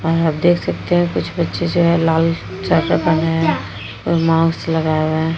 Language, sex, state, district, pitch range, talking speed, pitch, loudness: Hindi, female, Uttar Pradesh, Jyotiba Phule Nagar, 160-170 Hz, 165 wpm, 165 Hz, -17 LUFS